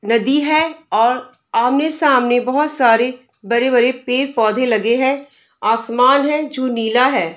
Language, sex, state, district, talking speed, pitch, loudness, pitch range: Hindi, female, Bihar, Darbhanga, 165 wpm, 250 Hz, -16 LUFS, 235-275 Hz